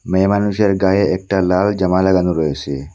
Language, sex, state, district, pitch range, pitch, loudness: Bengali, male, Assam, Hailakandi, 90-100 Hz, 95 Hz, -16 LUFS